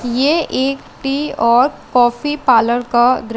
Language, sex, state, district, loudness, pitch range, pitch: Hindi, female, Chandigarh, Chandigarh, -15 LUFS, 240-285 Hz, 255 Hz